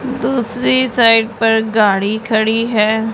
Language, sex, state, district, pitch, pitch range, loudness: Hindi, female, Punjab, Pathankot, 225 Hz, 220-245 Hz, -14 LUFS